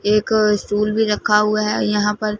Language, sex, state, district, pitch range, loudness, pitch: Hindi, female, Punjab, Fazilka, 210-215 Hz, -18 LUFS, 210 Hz